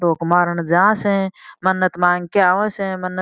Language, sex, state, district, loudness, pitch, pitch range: Marwari, female, Rajasthan, Churu, -17 LUFS, 185 Hz, 175-195 Hz